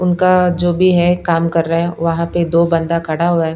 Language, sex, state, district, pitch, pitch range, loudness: Hindi, female, Punjab, Pathankot, 170 Hz, 165-175 Hz, -15 LUFS